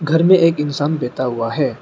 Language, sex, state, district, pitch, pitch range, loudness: Hindi, male, Arunachal Pradesh, Lower Dibang Valley, 145 Hz, 125-160 Hz, -16 LUFS